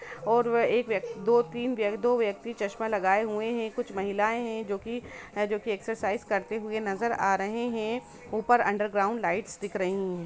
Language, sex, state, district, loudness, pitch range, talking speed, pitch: Hindi, female, Jharkhand, Jamtara, -29 LUFS, 200-235 Hz, 175 wpm, 220 Hz